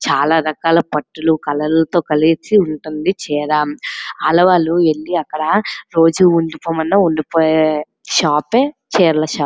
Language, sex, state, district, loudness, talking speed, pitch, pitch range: Telugu, female, Andhra Pradesh, Srikakulam, -15 LUFS, 125 wpm, 160 Hz, 155-175 Hz